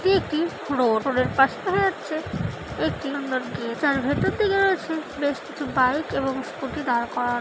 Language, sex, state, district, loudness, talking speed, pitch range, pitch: Bengali, female, West Bengal, Jalpaiguri, -24 LUFS, 185 wpm, 255-320 Hz, 285 Hz